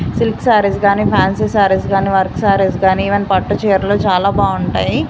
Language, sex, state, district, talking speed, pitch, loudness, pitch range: Telugu, female, Andhra Pradesh, Guntur, 165 wpm, 200 Hz, -14 LUFS, 195-205 Hz